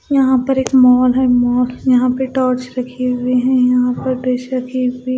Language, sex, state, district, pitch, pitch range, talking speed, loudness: Hindi, female, Odisha, Malkangiri, 255 Hz, 250-260 Hz, 195 wpm, -15 LUFS